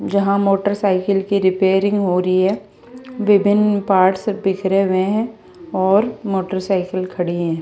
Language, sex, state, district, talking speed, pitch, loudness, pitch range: Hindi, female, Rajasthan, Jaipur, 125 wpm, 195 Hz, -17 LUFS, 185-205 Hz